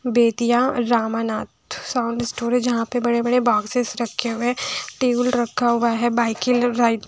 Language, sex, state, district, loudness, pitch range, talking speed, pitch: Hindi, female, Bihar, West Champaran, -21 LUFS, 235-245 Hz, 155 wpm, 240 Hz